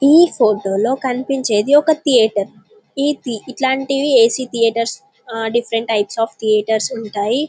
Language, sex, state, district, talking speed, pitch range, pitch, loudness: Telugu, female, Telangana, Karimnagar, 95 wpm, 220-275 Hz, 240 Hz, -16 LUFS